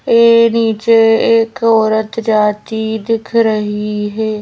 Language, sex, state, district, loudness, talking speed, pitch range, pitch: Hindi, female, Madhya Pradesh, Bhopal, -13 LUFS, 110 wpm, 215-230 Hz, 220 Hz